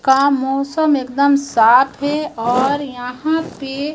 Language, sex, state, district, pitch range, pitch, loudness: Hindi, male, Chhattisgarh, Raipur, 265-290 Hz, 275 Hz, -16 LUFS